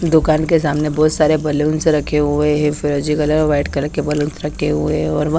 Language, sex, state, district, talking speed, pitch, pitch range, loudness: Hindi, female, Haryana, Charkhi Dadri, 245 wpm, 150 Hz, 150-155 Hz, -16 LUFS